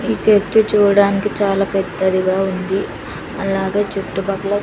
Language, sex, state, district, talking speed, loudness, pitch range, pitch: Telugu, female, Andhra Pradesh, Sri Satya Sai, 105 wpm, -17 LUFS, 195-205 Hz, 195 Hz